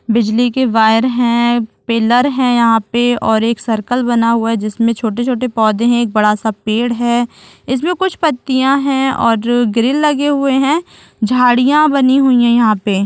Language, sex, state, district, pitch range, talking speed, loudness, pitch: Hindi, female, Chhattisgarh, Rajnandgaon, 225-260 Hz, 165 wpm, -13 LUFS, 240 Hz